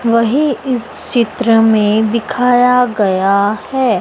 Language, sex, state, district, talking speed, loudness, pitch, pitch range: Hindi, female, Madhya Pradesh, Dhar, 105 wpm, -13 LUFS, 230 Hz, 215-250 Hz